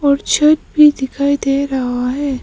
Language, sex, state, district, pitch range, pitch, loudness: Hindi, female, Arunachal Pradesh, Papum Pare, 265-290 Hz, 280 Hz, -14 LUFS